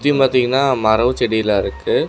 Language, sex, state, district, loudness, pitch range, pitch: Tamil, male, Tamil Nadu, Namakkal, -16 LUFS, 110-135 Hz, 125 Hz